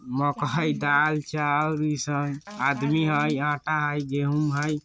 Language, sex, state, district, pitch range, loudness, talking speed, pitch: Bajjika, male, Bihar, Vaishali, 145-150 Hz, -25 LUFS, 125 wpm, 145 Hz